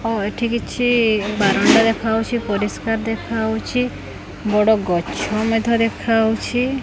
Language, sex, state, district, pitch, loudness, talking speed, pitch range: Odia, female, Odisha, Khordha, 225 Hz, -19 LUFS, 105 wpm, 215-230 Hz